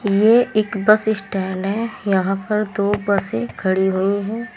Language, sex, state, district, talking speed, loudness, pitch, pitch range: Hindi, female, Uttar Pradesh, Saharanpur, 160 wpm, -19 LUFS, 200 Hz, 190-215 Hz